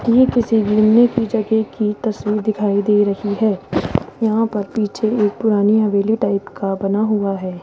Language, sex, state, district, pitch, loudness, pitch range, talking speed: Hindi, female, Rajasthan, Jaipur, 210 Hz, -17 LUFS, 205-220 Hz, 175 wpm